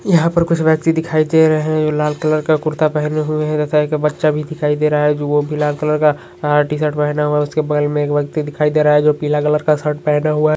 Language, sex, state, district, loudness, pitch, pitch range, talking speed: Hindi, male, Uttar Pradesh, Hamirpur, -16 LUFS, 150 Hz, 150-155 Hz, 270 wpm